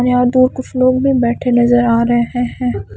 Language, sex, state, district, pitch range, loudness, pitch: Hindi, female, Punjab, Kapurthala, 240-255 Hz, -14 LUFS, 245 Hz